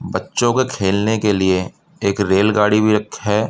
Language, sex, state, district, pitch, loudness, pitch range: Hindi, male, Uttar Pradesh, Budaun, 105 Hz, -17 LUFS, 100-110 Hz